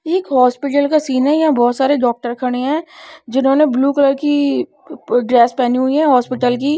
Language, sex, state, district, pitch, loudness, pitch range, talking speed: Hindi, female, Odisha, Nuapada, 270 Hz, -15 LUFS, 250-295 Hz, 185 wpm